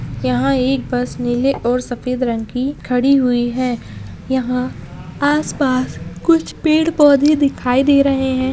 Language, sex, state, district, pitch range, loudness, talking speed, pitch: Hindi, female, Bihar, Madhepura, 245-280 Hz, -17 LUFS, 135 wpm, 255 Hz